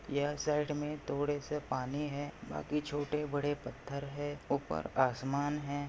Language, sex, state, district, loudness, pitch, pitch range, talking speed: Hindi, male, Maharashtra, Pune, -36 LUFS, 145 Hz, 140-145 Hz, 145 wpm